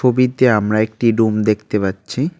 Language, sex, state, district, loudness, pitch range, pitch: Bengali, male, West Bengal, Cooch Behar, -16 LUFS, 105-125 Hz, 110 Hz